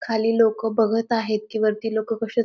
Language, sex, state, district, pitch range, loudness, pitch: Marathi, female, Maharashtra, Pune, 220-225 Hz, -22 LUFS, 225 Hz